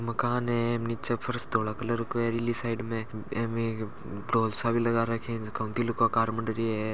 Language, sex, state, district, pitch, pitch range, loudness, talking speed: Marwari, male, Rajasthan, Churu, 115 Hz, 110-115 Hz, -29 LUFS, 225 wpm